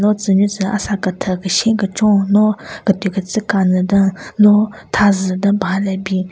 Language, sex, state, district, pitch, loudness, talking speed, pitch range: Rengma, female, Nagaland, Kohima, 200 Hz, -15 LUFS, 190 wpm, 190-210 Hz